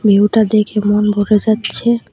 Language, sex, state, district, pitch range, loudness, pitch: Bengali, female, Tripura, West Tripura, 205-220 Hz, -14 LUFS, 210 Hz